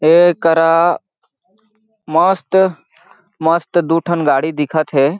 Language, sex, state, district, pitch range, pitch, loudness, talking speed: Chhattisgarhi, male, Chhattisgarh, Jashpur, 155-185 Hz, 165 Hz, -14 LUFS, 105 wpm